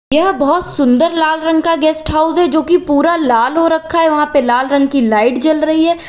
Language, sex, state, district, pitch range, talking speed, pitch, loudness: Hindi, female, Uttar Pradesh, Lalitpur, 280-330 Hz, 245 wpm, 315 Hz, -12 LUFS